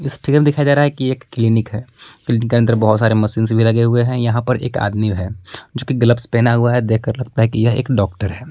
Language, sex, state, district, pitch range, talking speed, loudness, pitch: Hindi, male, Jharkhand, Palamu, 110-125 Hz, 270 wpm, -16 LUFS, 115 Hz